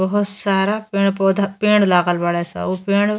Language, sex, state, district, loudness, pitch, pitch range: Bhojpuri, female, Uttar Pradesh, Ghazipur, -18 LUFS, 195 Hz, 185-205 Hz